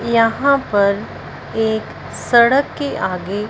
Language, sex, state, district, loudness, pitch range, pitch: Hindi, female, Punjab, Fazilka, -17 LUFS, 205-265 Hz, 225 Hz